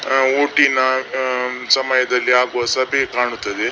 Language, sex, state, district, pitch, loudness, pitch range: Kannada, male, Karnataka, Dakshina Kannada, 130 Hz, -17 LUFS, 125-135 Hz